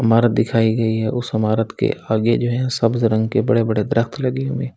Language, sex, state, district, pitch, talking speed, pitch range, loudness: Hindi, male, Delhi, New Delhi, 115 Hz, 225 wpm, 110-120 Hz, -19 LUFS